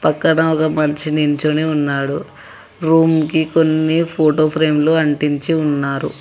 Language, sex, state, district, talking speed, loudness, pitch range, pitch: Telugu, male, Telangana, Hyderabad, 125 wpm, -16 LUFS, 150-160 Hz, 155 Hz